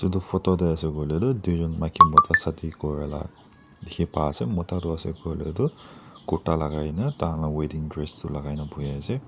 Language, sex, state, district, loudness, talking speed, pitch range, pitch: Nagamese, male, Nagaland, Dimapur, -25 LUFS, 200 wpm, 75-85 Hz, 80 Hz